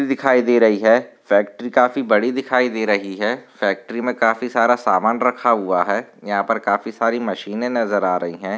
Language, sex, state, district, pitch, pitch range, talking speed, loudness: Hindi, male, Maharashtra, Nagpur, 115 Hz, 105-125 Hz, 195 wpm, -18 LUFS